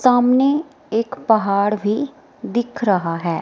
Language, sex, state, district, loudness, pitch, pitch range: Hindi, female, Himachal Pradesh, Shimla, -19 LUFS, 240 Hz, 205-265 Hz